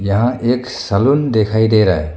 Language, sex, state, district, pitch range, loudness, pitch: Hindi, male, Arunachal Pradesh, Longding, 100-120 Hz, -15 LUFS, 110 Hz